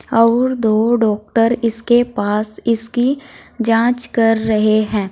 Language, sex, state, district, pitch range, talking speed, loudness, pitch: Hindi, female, Uttar Pradesh, Saharanpur, 215-240 Hz, 115 wpm, -16 LUFS, 230 Hz